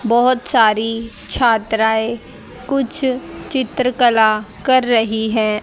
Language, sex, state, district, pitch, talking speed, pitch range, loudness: Hindi, female, Haryana, Charkhi Dadri, 230 Hz, 85 wpm, 220-255 Hz, -16 LUFS